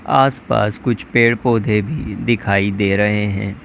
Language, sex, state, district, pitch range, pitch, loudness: Hindi, male, Uttar Pradesh, Lalitpur, 100-120 Hz, 105 Hz, -17 LUFS